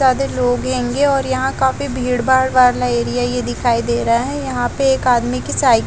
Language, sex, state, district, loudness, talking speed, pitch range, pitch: Hindi, female, Haryana, Charkhi Dadri, -16 LUFS, 215 wpm, 235-265 Hz, 250 Hz